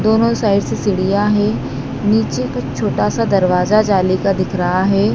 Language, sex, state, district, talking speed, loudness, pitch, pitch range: Hindi, female, Madhya Pradesh, Dhar, 165 wpm, -16 LUFS, 195 Hz, 180-210 Hz